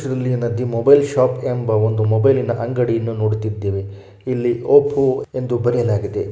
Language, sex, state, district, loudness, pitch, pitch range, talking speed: Kannada, male, Karnataka, Shimoga, -18 LUFS, 120 Hz, 110-130 Hz, 95 wpm